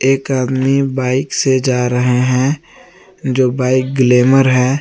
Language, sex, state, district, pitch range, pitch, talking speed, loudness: Hindi, male, Jharkhand, Garhwa, 125-135 Hz, 130 Hz, 135 wpm, -14 LUFS